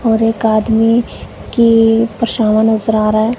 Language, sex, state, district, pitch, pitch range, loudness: Hindi, female, Punjab, Kapurthala, 225 Hz, 220-230 Hz, -12 LUFS